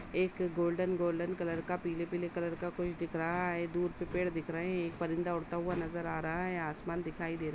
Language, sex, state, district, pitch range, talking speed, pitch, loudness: Hindi, female, Uttar Pradesh, Jalaun, 170-175 Hz, 255 wpm, 170 Hz, -36 LUFS